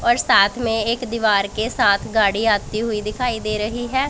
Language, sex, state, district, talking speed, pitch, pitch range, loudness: Hindi, female, Punjab, Pathankot, 205 wpm, 225 Hz, 210-240 Hz, -19 LUFS